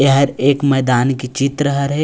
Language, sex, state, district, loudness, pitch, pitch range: Chhattisgarhi, male, Chhattisgarh, Raigarh, -15 LUFS, 140 Hz, 135-140 Hz